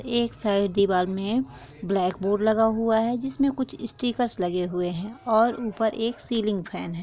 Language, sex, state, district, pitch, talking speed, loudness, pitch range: Hindi, female, Chhattisgarh, Korba, 220 Hz, 190 wpm, -25 LUFS, 190-235 Hz